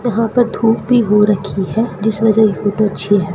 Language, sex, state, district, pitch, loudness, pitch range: Hindi, female, Rajasthan, Bikaner, 215 Hz, -14 LUFS, 205-230 Hz